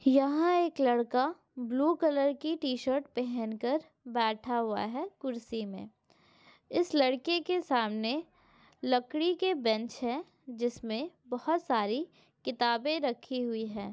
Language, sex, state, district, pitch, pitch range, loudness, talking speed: Hindi, female, Maharashtra, Pune, 255 Hz, 235-305 Hz, -32 LUFS, 120 wpm